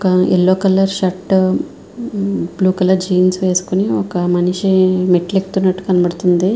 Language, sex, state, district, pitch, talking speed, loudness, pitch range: Telugu, female, Andhra Pradesh, Visakhapatnam, 185 Hz, 130 wpm, -15 LUFS, 180-190 Hz